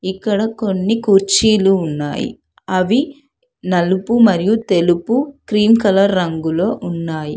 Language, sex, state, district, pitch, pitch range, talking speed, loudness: Telugu, female, Telangana, Hyderabad, 195 Hz, 180-225 Hz, 100 wpm, -15 LUFS